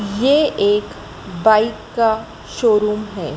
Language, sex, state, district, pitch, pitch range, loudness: Hindi, male, Madhya Pradesh, Dhar, 215 Hz, 200-225 Hz, -17 LUFS